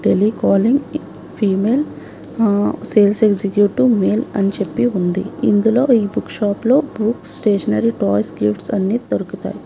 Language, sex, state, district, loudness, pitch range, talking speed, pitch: Telugu, female, Telangana, Hyderabad, -17 LUFS, 195-230 Hz, 130 wpm, 210 Hz